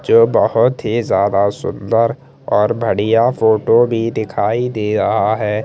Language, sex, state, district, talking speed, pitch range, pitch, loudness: Hindi, male, Chandigarh, Chandigarh, 140 wpm, 105-115 Hz, 110 Hz, -15 LUFS